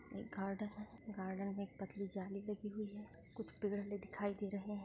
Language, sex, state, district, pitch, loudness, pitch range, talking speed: Hindi, female, Chhattisgarh, Sarguja, 205 Hz, -45 LUFS, 200-210 Hz, 210 wpm